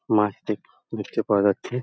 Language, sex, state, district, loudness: Bengali, male, West Bengal, Purulia, -24 LUFS